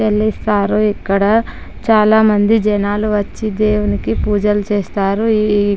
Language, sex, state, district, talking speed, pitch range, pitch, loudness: Telugu, female, Andhra Pradesh, Chittoor, 135 wpm, 205-215 Hz, 210 Hz, -15 LUFS